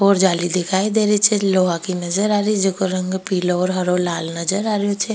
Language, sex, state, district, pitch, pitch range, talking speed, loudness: Rajasthani, female, Rajasthan, Nagaur, 190 Hz, 180-205 Hz, 245 wpm, -18 LUFS